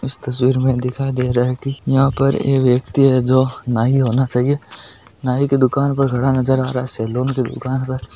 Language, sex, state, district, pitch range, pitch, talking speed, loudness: Marwari, male, Rajasthan, Nagaur, 125-135 Hz, 130 Hz, 220 wpm, -17 LUFS